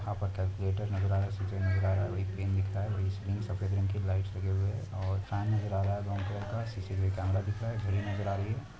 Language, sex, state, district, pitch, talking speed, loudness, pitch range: Hindi, male, Chhattisgarh, Kabirdham, 100 Hz, 305 wpm, -33 LUFS, 95-100 Hz